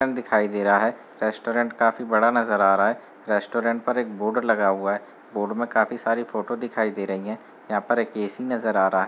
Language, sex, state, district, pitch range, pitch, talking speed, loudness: Hindi, male, Uttar Pradesh, Muzaffarnagar, 105-120 Hz, 110 Hz, 250 wpm, -23 LUFS